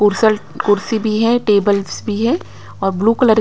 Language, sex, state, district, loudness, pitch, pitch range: Hindi, female, Haryana, Rohtak, -16 LUFS, 215 Hz, 205-225 Hz